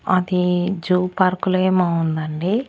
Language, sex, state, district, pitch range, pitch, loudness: Telugu, female, Andhra Pradesh, Annamaya, 175-185 Hz, 180 Hz, -19 LUFS